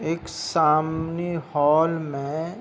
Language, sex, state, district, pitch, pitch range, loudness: Hindi, male, Uttar Pradesh, Hamirpur, 160 Hz, 155-165 Hz, -23 LUFS